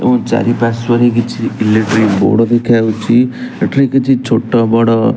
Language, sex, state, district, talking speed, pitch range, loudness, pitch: Odia, male, Odisha, Nuapada, 125 wpm, 110-125 Hz, -12 LUFS, 115 Hz